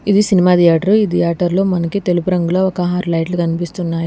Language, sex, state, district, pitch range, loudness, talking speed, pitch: Telugu, female, Telangana, Hyderabad, 170-185 Hz, -15 LUFS, 175 wpm, 180 Hz